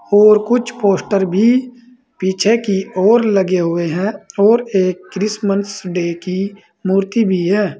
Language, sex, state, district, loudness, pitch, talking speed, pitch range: Hindi, male, Uttar Pradesh, Saharanpur, -16 LUFS, 200 Hz, 140 wpm, 190-220 Hz